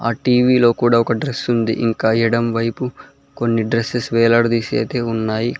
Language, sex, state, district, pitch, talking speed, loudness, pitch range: Telugu, male, Telangana, Mahabubabad, 115 Hz, 160 wpm, -17 LUFS, 115-120 Hz